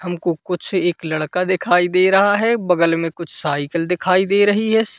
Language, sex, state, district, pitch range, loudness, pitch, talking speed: Hindi, male, Madhya Pradesh, Katni, 170-195 Hz, -17 LUFS, 180 Hz, 195 wpm